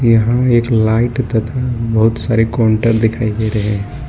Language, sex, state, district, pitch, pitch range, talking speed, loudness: Hindi, male, Jharkhand, Ranchi, 115 Hz, 110-120 Hz, 175 wpm, -14 LUFS